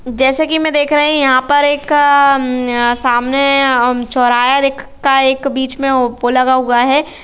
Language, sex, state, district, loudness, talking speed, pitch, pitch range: Hindi, female, Jharkhand, Sahebganj, -12 LUFS, 165 wpm, 265 Hz, 250-285 Hz